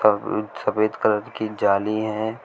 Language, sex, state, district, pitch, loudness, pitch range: Hindi, male, Uttar Pradesh, Shamli, 110 Hz, -23 LUFS, 105-110 Hz